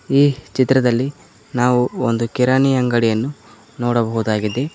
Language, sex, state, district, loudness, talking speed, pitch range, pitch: Kannada, male, Karnataka, Koppal, -18 LUFS, 90 wpm, 115-130 Hz, 125 Hz